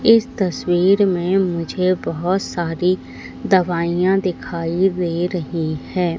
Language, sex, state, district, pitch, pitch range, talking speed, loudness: Hindi, female, Madhya Pradesh, Katni, 180 Hz, 170-190 Hz, 105 wpm, -19 LUFS